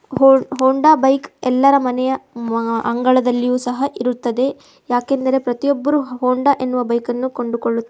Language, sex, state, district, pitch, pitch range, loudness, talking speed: Kannada, female, Karnataka, Chamarajanagar, 255 Hz, 245-270 Hz, -17 LUFS, 115 wpm